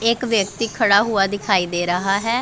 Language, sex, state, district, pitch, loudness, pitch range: Hindi, female, Punjab, Pathankot, 205 Hz, -19 LUFS, 195-230 Hz